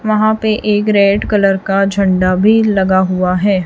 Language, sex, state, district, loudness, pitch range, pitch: Hindi, female, Chhattisgarh, Raipur, -12 LUFS, 190-215 Hz, 200 Hz